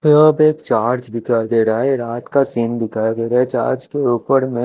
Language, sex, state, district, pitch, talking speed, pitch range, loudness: Hindi, male, Chandigarh, Chandigarh, 120 Hz, 220 wpm, 115-135 Hz, -17 LUFS